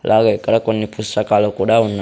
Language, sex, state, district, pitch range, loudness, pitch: Telugu, male, Andhra Pradesh, Sri Satya Sai, 105-110 Hz, -16 LUFS, 105 Hz